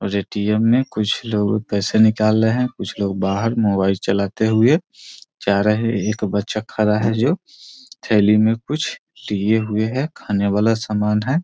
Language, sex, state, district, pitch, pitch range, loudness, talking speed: Hindi, male, Bihar, Muzaffarpur, 110 Hz, 100-115 Hz, -19 LUFS, 175 wpm